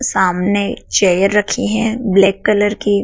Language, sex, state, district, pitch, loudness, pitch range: Hindi, female, Madhya Pradesh, Dhar, 205 Hz, -14 LUFS, 195-210 Hz